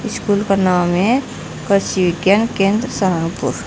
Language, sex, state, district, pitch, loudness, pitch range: Hindi, female, Uttar Pradesh, Saharanpur, 195 Hz, -16 LUFS, 180-205 Hz